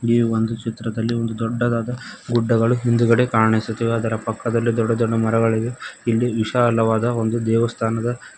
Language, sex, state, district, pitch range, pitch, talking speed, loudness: Kannada, male, Karnataka, Koppal, 115-120 Hz, 115 Hz, 120 wpm, -20 LUFS